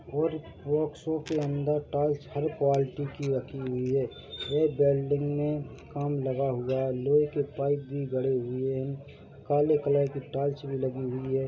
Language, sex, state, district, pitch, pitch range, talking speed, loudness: Hindi, male, Chhattisgarh, Bilaspur, 140 Hz, 135-145 Hz, 180 wpm, -29 LUFS